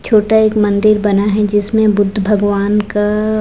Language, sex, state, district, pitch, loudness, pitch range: Hindi, female, Chhattisgarh, Raipur, 210 Hz, -13 LUFS, 205-215 Hz